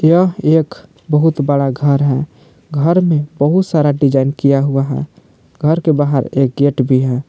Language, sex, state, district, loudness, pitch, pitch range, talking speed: Hindi, male, Jharkhand, Palamu, -14 LUFS, 145 Hz, 135-155 Hz, 175 wpm